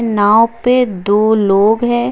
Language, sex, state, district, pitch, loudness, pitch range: Hindi, female, Uttar Pradesh, Lucknow, 220 Hz, -12 LUFS, 205-240 Hz